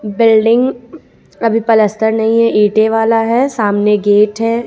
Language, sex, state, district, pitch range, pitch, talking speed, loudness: Hindi, female, Jharkhand, Ranchi, 210-230 Hz, 225 Hz, 140 wpm, -12 LUFS